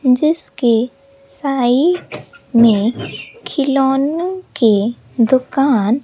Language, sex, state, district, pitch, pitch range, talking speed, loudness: Hindi, female, Bihar, Katihar, 265 Hz, 235-280 Hz, 60 wpm, -16 LUFS